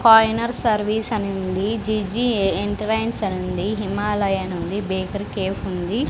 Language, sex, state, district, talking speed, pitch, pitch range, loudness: Telugu, female, Andhra Pradesh, Sri Satya Sai, 120 wpm, 205 Hz, 190-220 Hz, -22 LUFS